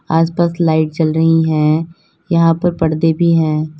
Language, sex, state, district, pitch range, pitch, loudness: Hindi, female, Uttar Pradesh, Lalitpur, 155-170 Hz, 165 Hz, -14 LUFS